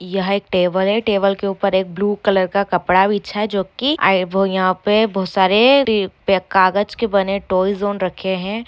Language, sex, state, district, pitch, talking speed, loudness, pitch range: Hindi, female, Bihar, Lakhisarai, 195 Hz, 200 wpm, -17 LUFS, 190-205 Hz